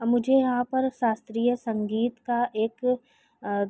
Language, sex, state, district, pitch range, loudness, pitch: Hindi, female, Chhattisgarh, Raigarh, 225-250 Hz, -26 LUFS, 240 Hz